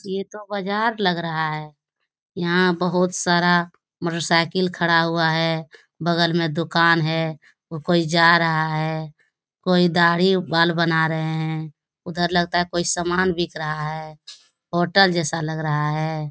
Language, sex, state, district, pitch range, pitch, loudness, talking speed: Hindi, female, Bihar, Lakhisarai, 160-175 Hz, 170 Hz, -20 LUFS, 145 wpm